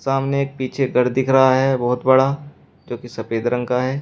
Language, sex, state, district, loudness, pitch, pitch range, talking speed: Hindi, male, Uttar Pradesh, Shamli, -18 LUFS, 130 Hz, 125-135 Hz, 225 wpm